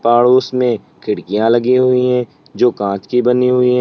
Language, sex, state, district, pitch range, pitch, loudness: Hindi, male, Uttar Pradesh, Lalitpur, 120-125 Hz, 125 Hz, -14 LUFS